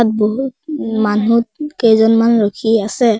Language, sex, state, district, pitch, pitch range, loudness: Assamese, female, Assam, Sonitpur, 225 Hz, 220-240 Hz, -14 LUFS